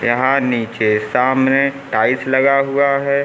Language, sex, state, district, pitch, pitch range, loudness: Hindi, male, Uttar Pradesh, Lucknow, 130 Hz, 120-140 Hz, -16 LUFS